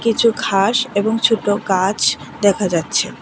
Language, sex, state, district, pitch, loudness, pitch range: Bengali, female, Tripura, West Tripura, 205 Hz, -17 LUFS, 190-225 Hz